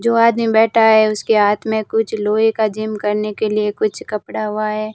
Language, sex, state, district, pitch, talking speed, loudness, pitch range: Hindi, female, Rajasthan, Barmer, 215 Hz, 220 wpm, -16 LUFS, 210-220 Hz